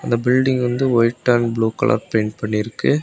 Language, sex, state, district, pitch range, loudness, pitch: Tamil, male, Tamil Nadu, Kanyakumari, 110-130 Hz, -18 LUFS, 120 Hz